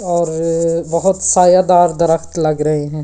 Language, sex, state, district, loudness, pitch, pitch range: Hindi, female, Delhi, New Delhi, -14 LUFS, 165 Hz, 160-175 Hz